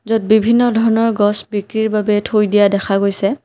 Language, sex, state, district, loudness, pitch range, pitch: Assamese, female, Assam, Kamrup Metropolitan, -15 LUFS, 205-225 Hz, 215 Hz